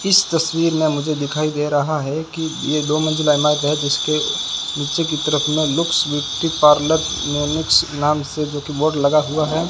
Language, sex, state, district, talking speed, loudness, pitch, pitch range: Hindi, male, Rajasthan, Bikaner, 185 wpm, -18 LUFS, 150 Hz, 145-160 Hz